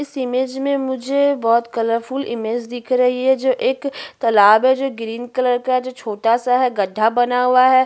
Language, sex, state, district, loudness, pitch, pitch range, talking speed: Hindi, female, Chhattisgarh, Bastar, -18 LUFS, 250 Hz, 230-260 Hz, 190 wpm